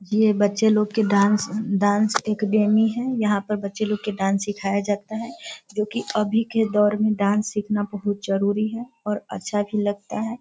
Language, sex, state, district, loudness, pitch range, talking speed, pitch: Hindi, female, Bihar, Sitamarhi, -22 LUFS, 205-220 Hz, 190 wpm, 210 Hz